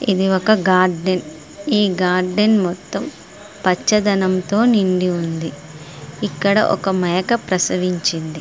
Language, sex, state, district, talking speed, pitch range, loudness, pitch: Telugu, female, Andhra Pradesh, Srikakulam, 100 wpm, 180-205 Hz, -17 LUFS, 185 Hz